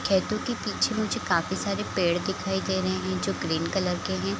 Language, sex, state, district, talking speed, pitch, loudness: Hindi, female, Chhattisgarh, Raigarh, 230 wpm, 175 Hz, -27 LUFS